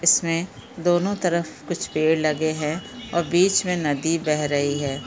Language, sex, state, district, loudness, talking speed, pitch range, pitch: Hindi, female, Chhattisgarh, Bilaspur, -22 LUFS, 165 wpm, 150-175 Hz, 165 Hz